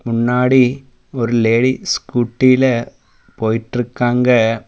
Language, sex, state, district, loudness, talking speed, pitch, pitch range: Tamil, male, Tamil Nadu, Namakkal, -15 LUFS, 65 wpm, 125 Hz, 115-130 Hz